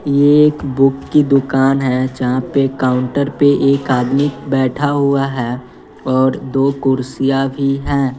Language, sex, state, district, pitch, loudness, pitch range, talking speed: Hindi, female, Bihar, West Champaran, 135 Hz, -15 LUFS, 130-140 Hz, 145 wpm